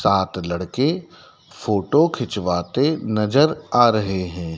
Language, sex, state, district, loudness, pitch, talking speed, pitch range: Hindi, male, Madhya Pradesh, Dhar, -20 LUFS, 105 Hz, 105 wpm, 90-145 Hz